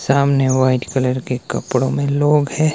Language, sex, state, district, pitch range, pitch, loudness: Hindi, male, Himachal Pradesh, Shimla, 130-140 Hz, 135 Hz, -17 LUFS